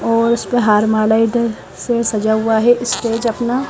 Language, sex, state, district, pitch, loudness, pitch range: Hindi, female, Haryana, Charkhi Dadri, 230 Hz, -15 LUFS, 220-235 Hz